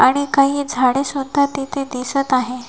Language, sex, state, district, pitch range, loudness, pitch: Marathi, female, Maharashtra, Washim, 255-280 Hz, -18 LUFS, 275 Hz